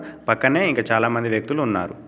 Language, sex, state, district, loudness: Telugu, male, Telangana, Komaram Bheem, -20 LUFS